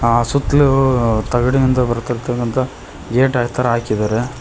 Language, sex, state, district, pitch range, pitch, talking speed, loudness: Kannada, male, Karnataka, Koppal, 115-130 Hz, 120 Hz, 95 wpm, -16 LUFS